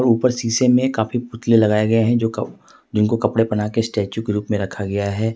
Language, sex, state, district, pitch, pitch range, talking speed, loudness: Hindi, male, Jharkhand, Ranchi, 110 Hz, 105-115 Hz, 215 wpm, -19 LUFS